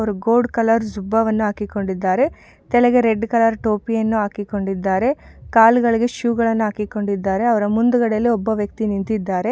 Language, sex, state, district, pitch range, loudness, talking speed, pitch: Kannada, female, Karnataka, Mysore, 205-235 Hz, -18 LUFS, 120 wpm, 220 Hz